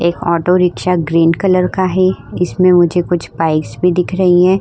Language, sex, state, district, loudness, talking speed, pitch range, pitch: Hindi, female, Uttar Pradesh, Hamirpur, -13 LUFS, 210 wpm, 170-185 Hz, 180 Hz